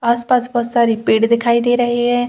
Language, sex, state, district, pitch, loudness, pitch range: Hindi, female, Chhattisgarh, Bilaspur, 240 Hz, -15 LUFS, 235-245 Hz